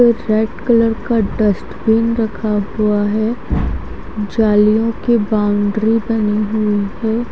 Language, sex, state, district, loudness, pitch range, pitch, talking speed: Hindi, female, Haryana, Charkhi Dadri, -16 LUFS, 210-230 Hz, 220 Hz, 115 wpm